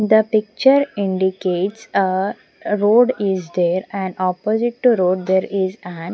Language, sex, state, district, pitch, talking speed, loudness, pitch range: English, female, Punjab, Pathankot, 195 Hz, 145 wpm, -18 LUFS, 185-220 Hz